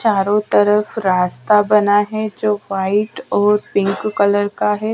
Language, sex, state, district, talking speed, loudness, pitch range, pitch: Hindi, female, Chhattisgarh, Raipur, 145 wpm, -16 LUFS, 200-210 Hz, 205 Hz